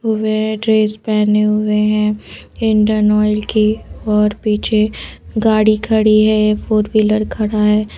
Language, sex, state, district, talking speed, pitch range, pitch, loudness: Hindi, female, Madhya Pradesh, Bhopal, 130 wpm, 210-215 Hz, 215 Hz, -15 LUFS